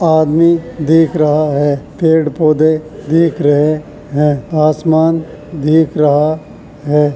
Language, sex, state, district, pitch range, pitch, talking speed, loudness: Hindi, male, Uttar Pradesh, Jalaun, 150-160 Hz, 155 Hz, 110 wpm, -13 LUFS